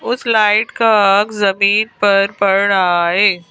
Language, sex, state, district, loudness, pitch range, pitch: Hindi, female, Madhya Pradesh, Bhopal, -13 LUFS, 195-215 Hz, 200 Hz